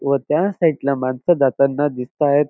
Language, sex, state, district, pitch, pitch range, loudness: Marathi, male, Maharashtra, Dhule, 140 Hz, 135-150 Hz, -18 LUFS